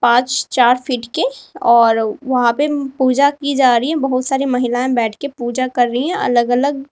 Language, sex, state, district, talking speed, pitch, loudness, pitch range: Hindi, female, Uttar Pradesh, Lalitpur, 200 wpm, 255 Hz, -16 LUFS, 240-280 Hz